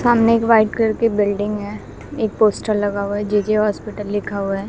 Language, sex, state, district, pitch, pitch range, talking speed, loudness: Hindi, female, Bihar, West Champaran, 210 Hz, 205-220 Hz, 205 wpm, -18 LUFS